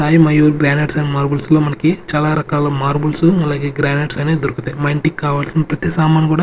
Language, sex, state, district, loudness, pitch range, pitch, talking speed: Telugu, male, Andhra Pradesh, Sri Satya Sai, -15 LUFS, 145-155 Hz, 150 Hz, 185 wpm